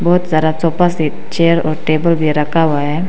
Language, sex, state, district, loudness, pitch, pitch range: Hindi, female, Arunachal Pradesh, Papum Pare, -14 LUFS, 160 Hz, 155-170 Hz